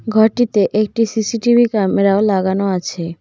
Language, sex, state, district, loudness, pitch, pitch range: Bengali, female, West Bengal, Cooch Behar, -15 LUFS, 210 Hz, 195-230 Hz